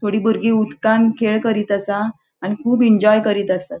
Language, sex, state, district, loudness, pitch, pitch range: Konkani, female, Goa, North and South Goa, -17 LUFS, 215 Hz, 205-225 Hz